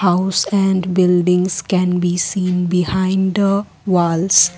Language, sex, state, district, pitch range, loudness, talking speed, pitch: English, female, Assam, Kamrup Metropolitan, 180-190 Hz, -16 LUFS, 120 wpm, 180 Hz